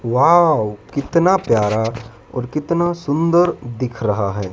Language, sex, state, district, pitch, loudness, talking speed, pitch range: Hindi, male, Madhya Pradesh, Dhar, 125 Hz, -17 LUFS, 120 wpm, 115-170 Hz